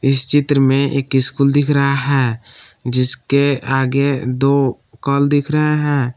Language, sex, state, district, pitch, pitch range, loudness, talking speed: Hindi, male, Jharkhand, Palamu, 140 Hz, 130-140 Hz, -15 LUFS, 145 wpm